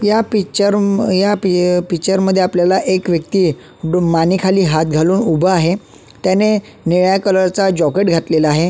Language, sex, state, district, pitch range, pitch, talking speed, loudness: Marathi, male, Maharashtra, Solapur, 170-195 Hz, 185 Hz, 140 wpm, -14 LUFS